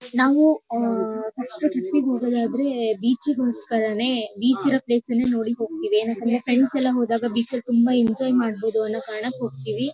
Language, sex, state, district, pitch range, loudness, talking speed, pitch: Kannada, female, Karnataka, Shimoga, 230-260 Hz, -22 LUFS, 155 wpm, 240 Hz